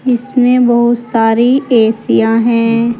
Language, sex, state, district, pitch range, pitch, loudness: Hindi, female, Uttar Pradesh, Saharanpur, 230-245 Hz, 235 Hz, -11 LUFS